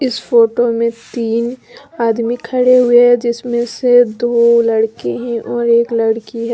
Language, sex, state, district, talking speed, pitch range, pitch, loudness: Hindi, female, Jharkhand, Deoghar, 155 wpm, 230-245 Hz, 235 Hz, -14 LUFS